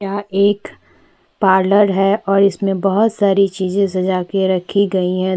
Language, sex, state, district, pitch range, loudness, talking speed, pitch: Hindi, female, Chhattisgarh, Bastar, 190-200 Hz, -16 LUFS, 170 wpm, 195 Hz